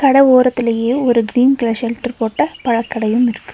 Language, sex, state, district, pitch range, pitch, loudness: Tamil, female, Tamil Nadu, Nilgiris, 230-255 Hz, 240 Hz, -15 LUFS